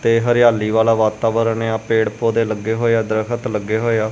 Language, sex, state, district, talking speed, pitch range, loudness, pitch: Punjabi, male, Punjab, Kapurthala, 190 wpm, 110-115 Hz, -17 LUFS, 115 Hz